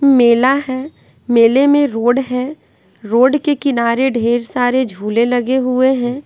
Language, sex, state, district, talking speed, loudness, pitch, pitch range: Hindi, female, Bihar, Patna, 145 wpm, -14 LUFS, 255 Hz, 235-270 Hz